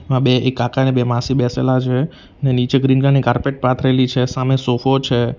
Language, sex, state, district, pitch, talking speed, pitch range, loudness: Gujarati, male, Gujarat, Valsad, 130 Hz, 220 wpm, 125-135 Hz, -16 LUFS